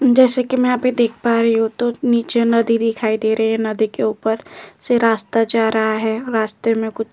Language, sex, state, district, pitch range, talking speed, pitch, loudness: Hindi, female, Maharashtra, Chandrapur, 220-240 Hz, 235 wpm, 225 Hz, -17 LUFS